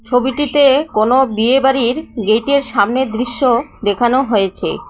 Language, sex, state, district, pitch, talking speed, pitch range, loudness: Bengali, female, West Bengal, Cooch Behar, 250 Hz, 100 wpm, 225-270 Hz, -14 LUFS